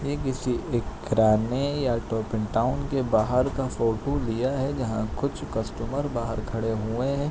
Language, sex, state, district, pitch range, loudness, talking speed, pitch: Hindi, male, Jharkhand, Jamtara, 110-135 Hz, -26 LUFS, 150 wpm, 120 Hz